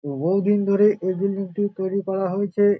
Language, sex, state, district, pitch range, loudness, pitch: Bengali, male, West Bengal, Dakshin Dinajpur, 190-205 Hz, -22 LUFS, 195 Hz